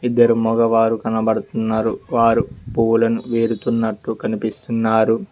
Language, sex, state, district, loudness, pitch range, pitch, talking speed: Telugu, male, Telangana, Mahabubabad, -18 LUFS, 110-115 Hz, 115 Hz, 80 wpm